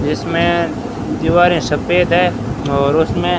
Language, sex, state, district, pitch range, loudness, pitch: Hindi, male, Rajasthan, Bikaner, 115-175 Hz, -15 LUFS, 140 Hz